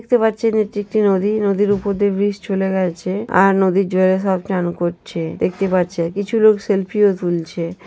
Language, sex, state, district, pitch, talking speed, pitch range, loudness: Bengali, female, West Bengal, Jhargram, 195 Hz, 185 wpm, 185-205 Hz, -18 LUFS